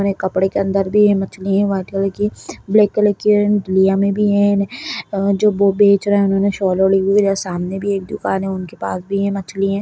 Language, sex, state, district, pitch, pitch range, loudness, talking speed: Kumaoni, female, Uttarakhand, Tehri Garhwal, 200 Hz, 195-205 Hz, -17 LUFS, 245 wpm